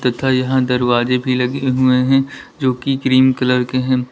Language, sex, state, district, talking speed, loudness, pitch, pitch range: Hindi, male, Uttar Pradesh, Lalitpur, 175 wpm, -16 LUFS, 130 Hz, 125-130 Hz